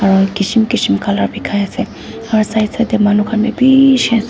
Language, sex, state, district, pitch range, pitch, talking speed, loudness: Nagamese, female, Nagaland, Dimapur, 200-235 Hz, 220 Hz, 210 wpm, -13 LUFS